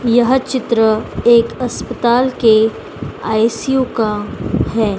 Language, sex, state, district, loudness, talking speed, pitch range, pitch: Hindi, female, Madhya Pradesh, Dhar, -15 LUFS, 95 wpm, 220-250 Hz, 235 Hz